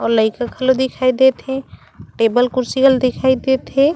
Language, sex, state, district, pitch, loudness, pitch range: Chhattisgarhi, female, Chhattisgarh, Raigarh, 260 Hz, -16 LUFS, 250-265 Hz